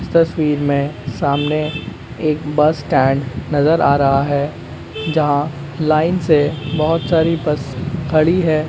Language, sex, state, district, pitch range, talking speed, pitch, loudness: Magahi, male, Bihar, Gaya, 140-155 Hz, 130 wpm, 150 Hz, -17 LUFS